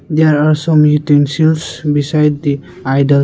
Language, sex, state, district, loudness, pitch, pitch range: English, male, Arunachal Pradesh, Lower Dibang Valley, -13 LUFS, 150 Hz, 145-155 Hz